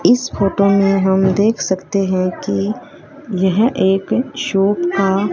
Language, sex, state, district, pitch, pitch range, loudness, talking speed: Hindi, female, Haryana, Rohtak, 195 Hz, 190-215 Hz, -16 LUFS, 135 wpm